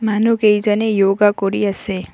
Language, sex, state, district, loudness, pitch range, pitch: Assamese, female, Assam, Kamrup Metropolitan, -16 LUFS, 195-215 Hz, 210 Hz